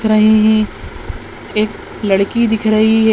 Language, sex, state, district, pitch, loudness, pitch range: Hindi, female, Chhattisgarh, Bastar, 215 Hz, -14 LUFS, 215-220 Hz